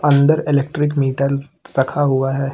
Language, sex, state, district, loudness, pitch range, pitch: Hindi, male, Uttar Pradesh, Lucknow, -18 LUFS, 135-145 Hz, 140 Hz